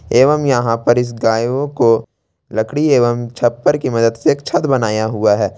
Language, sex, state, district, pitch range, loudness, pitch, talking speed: Hindi, male, Jharkhand, Ranchi, 110-135 Hz, -15 LUFS, 120 Hz, 185 wpm